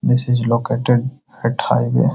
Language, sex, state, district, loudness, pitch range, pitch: Hindi, male, Bihar, Muzaffarpur, -18 LUFS, 105-125 Hz, 120 Hz